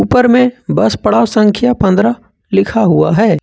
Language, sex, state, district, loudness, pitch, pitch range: Hindi, male, Jharkhand, Ranchi, -11 LUFS, 220 Hz, 195-240 Hz